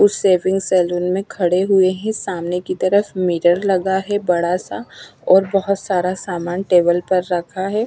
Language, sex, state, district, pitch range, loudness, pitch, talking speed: Hindi, female, Chandigarh, Chandigarh, 175-195 Hz, -17 LUFS, 185 Hz, 175 wpm